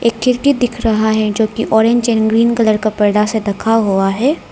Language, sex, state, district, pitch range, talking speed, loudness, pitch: Hindi, female, Arunachal Pradesh, Lower Dibang Valley, 215-235 Hz, 225 wpm, -14 LUFS, 220 Hz